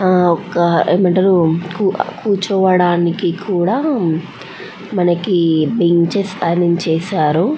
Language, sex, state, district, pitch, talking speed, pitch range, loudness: Telugu, female, Andhra Pradesh, Anantapur, 180 Hz, 80 wpm, 170-190 Hz, -15 LUFS